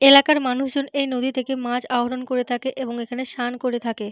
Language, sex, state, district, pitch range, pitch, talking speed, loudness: Bengali, female, Jharkhand, Jamtara, 245-265 Hz, 255 Hz, 205 wpm, -22 LUFS